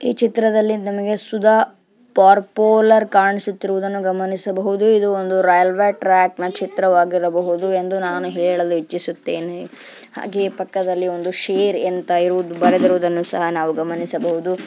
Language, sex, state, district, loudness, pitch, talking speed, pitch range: Kannada, female, Karnataka, Dharwad, -18 LUFS, 190 Hz, 105 wpm, 180-200 Hz